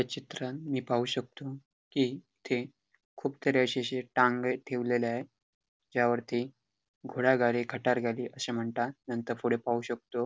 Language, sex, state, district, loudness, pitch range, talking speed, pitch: Marathi, male, Goa, North and South Goa, -31 LUFS, 120-130 Hz, 150 wpm, 125 Hz